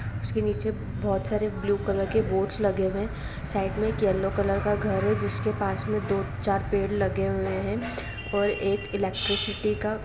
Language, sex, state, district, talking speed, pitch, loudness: Hindi, female, Andhra Pradesh, Srikakulam, 195 wpm, 105 Hz, -27 LUFS